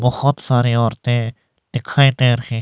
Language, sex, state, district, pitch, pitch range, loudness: Hindi, male, Himachal Pradesh, Shimla, 125 Hz, 115-130 Hz, -17 LUFS